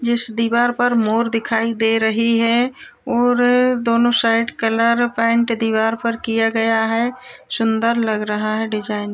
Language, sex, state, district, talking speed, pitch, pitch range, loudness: Hindi, female, Bihar, Purnia, 155 wpm, 230 Hz, 225-240 Hz, -18 LUFS